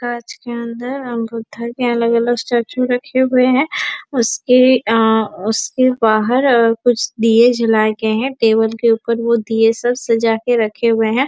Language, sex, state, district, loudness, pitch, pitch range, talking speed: Hindi, female, Chhattisgarh, Bastar, -15 LUFS, 235 Hz, 225-250 Hz, 175 wpm